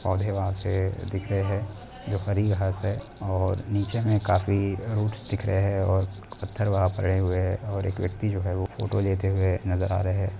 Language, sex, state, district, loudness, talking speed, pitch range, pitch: Hindi, male, Bihar, Jamui, -27 LUFS, 215 wpm, 95-105 Hz, 100 Hz